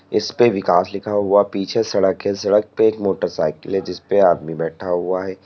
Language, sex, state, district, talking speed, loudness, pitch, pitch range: Hindi, male, Uttar Pradesh, Lalitpur, 200 wpm, -19 LUFS, 95 Hz, 90-105 Hz